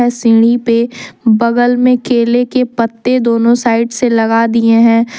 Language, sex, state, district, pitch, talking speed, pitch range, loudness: Hindi, female, Jharkhand, Deoghar, 235 Hz, 150 wpm, 230-245 Hz, -11 LUFS